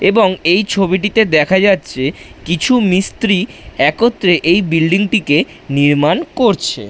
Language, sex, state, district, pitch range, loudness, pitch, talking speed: Bengali, male, West Bengal, Dakshin Dinajpur, 160-205 Hz, -13 LUFS, 185 Hz, 115 wpm